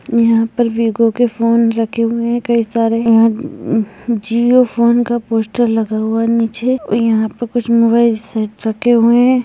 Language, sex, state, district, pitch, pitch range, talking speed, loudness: Hindi, male, Uttarakhand, Tehri Garhwal, 230 Hz, 225-240 Hz, 180 wpm, -14 LUFS